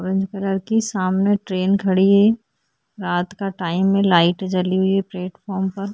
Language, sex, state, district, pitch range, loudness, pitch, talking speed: Hindi, female, Chhattisgarh, Korba, 185-200 Hz, -19 LUFS, 190 Hz, 190 wpm